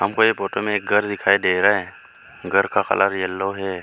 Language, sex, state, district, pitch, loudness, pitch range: Hindi, male, Arunachal Pradesh, Lower Dibang Valley, 100 Hz, -20 LUFS, 95-105 Hz